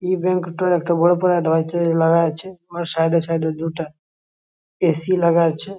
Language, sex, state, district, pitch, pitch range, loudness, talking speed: Bengali, male, West Bengal, Jhargram, 170 Hz, 165-180 Hz, -19 LUFS, 185 wpm